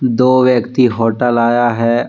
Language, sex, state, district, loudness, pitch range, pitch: Hindi, male, Jharkhand, Deoghar, -13 LUFS, 115-125 Hz, 120 Hz